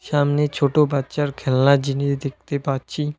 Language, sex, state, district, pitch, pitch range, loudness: Bengali, male, West Bengal, Alipurduar, 140 Hz, 140-145 Hz, -20 LUFS